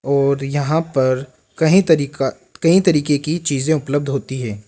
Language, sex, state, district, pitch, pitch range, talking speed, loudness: Hindi, male, Rajasthan, Jaipur, 140 Hz, 135-160 Hz, 155 wpm, -17 LUFS